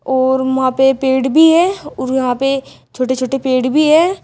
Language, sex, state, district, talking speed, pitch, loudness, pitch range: Hindi, female, Uttar Pradesh, Shamli, 200 wpm, 265 Hz, -14 LUFS, 260-300 Hz